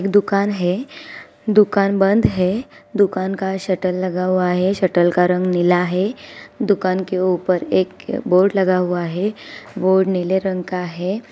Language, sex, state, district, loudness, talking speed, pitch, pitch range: Hindi, female, Bihar, Gopalganj, -18 LUFS, 155 wpm, 185 Hz, 180-200 Hz